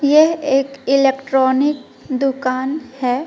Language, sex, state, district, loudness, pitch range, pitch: Hindi, female, West Bengal, Alipurduar, -17 LUFS, 265-285 Hz, 270 Hz